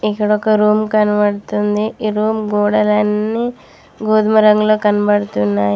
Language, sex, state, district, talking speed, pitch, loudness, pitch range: Telugu, female, Telangana, Mahabubabad, 95 wpm, 210 Hz, -15 LUFS, 210-215 Hz